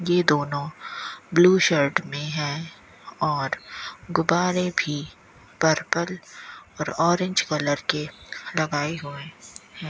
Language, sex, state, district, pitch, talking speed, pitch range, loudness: Hindi, female, Rajasthan, Bikaner, 155 Hz, 105 wpm, 145-175 Hz, -24 LUFS